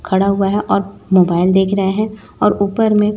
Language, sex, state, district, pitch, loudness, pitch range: Hindi, female, Chhattisgarh, Raipur, 200 Hz, -15 LUFS, 190-210 Hz